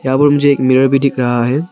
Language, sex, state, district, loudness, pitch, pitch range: Hindi, male, Arunachal Pradesh, Papum Pare, -12 LUFS, 135 Hz, 130-140 Hz